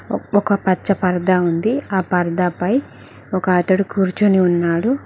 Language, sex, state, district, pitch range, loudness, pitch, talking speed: Telugu, female, Telangana, Mahabubabad, 180-200 Hz, -18 LUFS, 185 Hz, 130 wpm